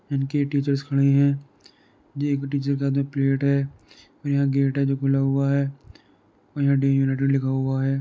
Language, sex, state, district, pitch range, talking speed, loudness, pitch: Hindi, male, Uttar Pradesh, Muzaffarnagar, 135-140 Hz, 185 wpm, -23 LUFS, 140 Hz